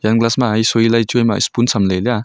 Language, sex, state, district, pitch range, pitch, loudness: Wancho, male, Arunachal Pradesh, Longding, 110-120 Hz, 115 Hz, -15 LUFS